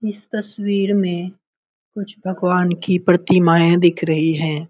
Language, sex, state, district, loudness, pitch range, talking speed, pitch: Hindi, male, Bihar, Muzaffarpur, -17 LUFS, 170-200 Hz, 130 wpm, 180 Hz